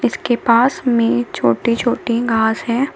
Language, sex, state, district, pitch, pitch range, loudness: Hindi, female, Uttar Pradesh, Shamli, 235 Hz, 230-240 Hz, -16 LUFS